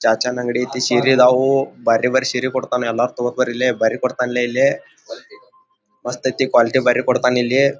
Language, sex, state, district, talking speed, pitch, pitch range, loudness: Kannada, male, Karnataka, Gulbarga, 160 wpm, 125 Hz, 125-130 Hz, -17 LUFS